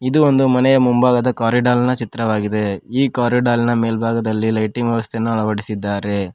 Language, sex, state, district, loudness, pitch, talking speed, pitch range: Kannada, male, Karnataka, Koppal, -17 LUFS, 115 Hz, 115 wpm, 110-125 Hz